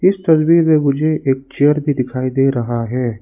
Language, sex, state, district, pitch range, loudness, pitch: Hindi, male, Arunachal Pradesh, Lower Dibang Valley, 130-155 Hz, -15 LUFS, 140 Hz